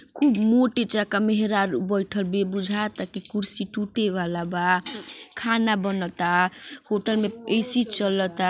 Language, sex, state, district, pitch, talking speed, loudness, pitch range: Bhojpuri, female, Uttar Pradesh, Ghazipur, 205 Hz, 160 wpm, -24 LUFS, 195-220 Hz